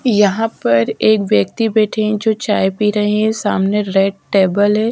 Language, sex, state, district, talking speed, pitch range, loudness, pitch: Hindi, female, Bihar, Patna, 185 wpm, 200-220 Hz, -15 LUFS, 210 Hz